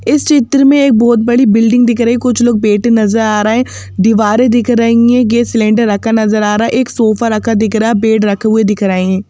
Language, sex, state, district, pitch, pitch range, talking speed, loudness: Hindi, female, Madhya Pradesh, Bhopal, 225 Hz, 215-240 Hz, 260 wpm, -10 LUFS